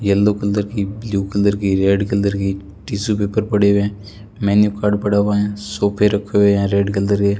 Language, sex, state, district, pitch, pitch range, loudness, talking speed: Hindi, male, Rajasthan, Bikaner, 100 Hz, 100-105 Hz, -17 LUFS, 220 wpm